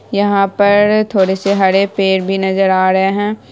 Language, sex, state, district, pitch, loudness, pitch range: Hindi, female, Bihar, Saharsa, 195 Hz, -13 LUFS, 190-205 Hz